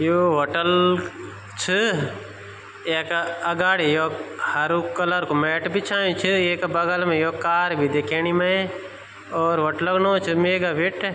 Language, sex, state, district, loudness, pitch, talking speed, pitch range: Garhwali, male, Uttarakhand, Tehri Garhwal, -21 LUFS, 170 Hz, 145 wpm, 160-180 Hz